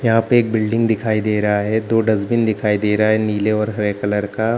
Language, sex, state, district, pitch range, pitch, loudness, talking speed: Hindi, male, Bihar, Jahanabad, 105-115 Hz, 110 Hz, -18 LUFS, 250 wpm